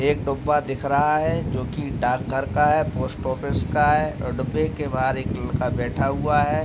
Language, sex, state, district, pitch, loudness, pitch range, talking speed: Hindi, male, Uttar Pradesh, Deoria, 145 Hz, -23 LUFS, 130-150 Hz, 200 wpm